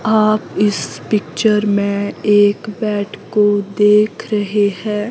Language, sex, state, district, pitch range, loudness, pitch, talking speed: Hindi, female, Himachal Pradesh, Shimla, 205-210 Hz, -16 LUFS, 210 Hz, 115 wpm